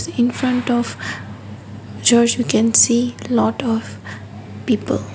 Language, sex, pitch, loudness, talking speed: English, female, 225 Hz, -17 LUFS, 115 wpm